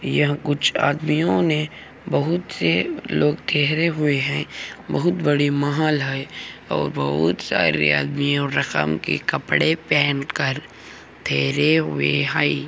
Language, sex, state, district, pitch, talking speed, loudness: Hindi, male, Andhra Pradesh, Anantapur, 145 Hz, 125 wpm, -20 LUFS